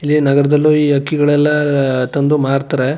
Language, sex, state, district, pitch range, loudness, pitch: Kannada, male, Karnataka, Chamarajanagar, 140-150 Hz, -14 LUFS, 145 Hz